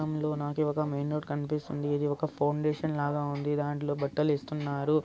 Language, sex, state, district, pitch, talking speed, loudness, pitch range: Telugu, male, Andhra Pradesh, Anantapur, 145 Hz, 180 wpm, -31 LUFS, 145-150 Hz